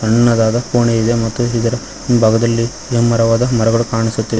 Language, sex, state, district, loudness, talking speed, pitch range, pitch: Kannada, male, Karnataka, Koppal, -14 LUFS, 125 wpm, 115-120 Hz, 115 Hz